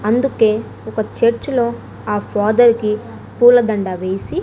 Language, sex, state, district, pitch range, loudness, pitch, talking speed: Telugu, female, Andhra Pradesh, Annamaya, 210-240 Hz, -16 LUFS, 220 Hz, 135 wpm